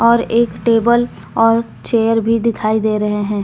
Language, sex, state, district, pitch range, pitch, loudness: Hindi, female, Jharkhand, Deoghar, 215-235 Hz, 230 Hz, -15 LUFS